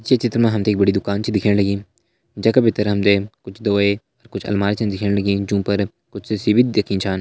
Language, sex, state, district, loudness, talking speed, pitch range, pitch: Hindi, male, Uttarakhand, Uttarkashi, -19 LUFS, 240 wpm, 100-110 Hz, 100 Hz